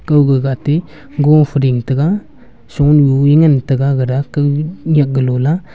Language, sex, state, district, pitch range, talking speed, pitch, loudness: Wancho, male, Arunachal Pradesh, Longding, 135-155 Hz, 125 wpm, 145 Hz, -13 LUFS